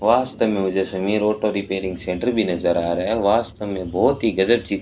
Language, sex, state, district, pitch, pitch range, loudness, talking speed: Hindi, male, Rajasthan, Bikaner, 100 Hz, 95-115 Hz, -20 LUFS, 225 wpm